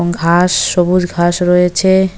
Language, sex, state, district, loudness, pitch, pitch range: Bengali, female, West Bengal, Cooch Behar, -12 LUFS, 180 Hz, 175-180 Hz